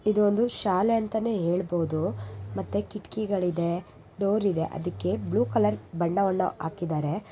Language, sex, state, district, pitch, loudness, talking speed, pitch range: Kannada, female, Karnataka, Mysore, 180 Hz, -27 LUFS, 130 wpm, 160-205 Hz